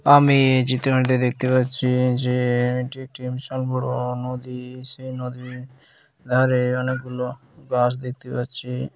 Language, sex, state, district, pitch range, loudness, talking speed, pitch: Bengali, male, West Bengal, Dakshin Dinajpur, 125-130 Hz, -22 LUFS, 125 wpm, 125 Hz